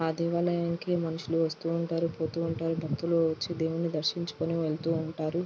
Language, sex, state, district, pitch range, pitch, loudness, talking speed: Telugu, female, Andhra Pradesh, Guntur, 160-170 Hz, 165 Hz, -30 LUFS, 145 wpm